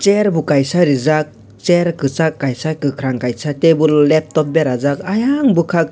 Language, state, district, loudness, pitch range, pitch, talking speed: Kokborok, Tripura, West Tripura, -15 LUFS, 140-170 Hz, 155 Hz, 140 wpm